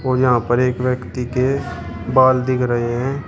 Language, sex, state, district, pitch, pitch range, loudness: Hindi, male, Uttar Pradesh, Shamli, 125 Hz, 120-130 Hz, -18 LUFS